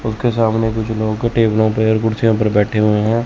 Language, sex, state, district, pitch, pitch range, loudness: Hindi, male, Chandigarh, Chandigarh, 110 Hz, 110-115 Hz, -16 LUFS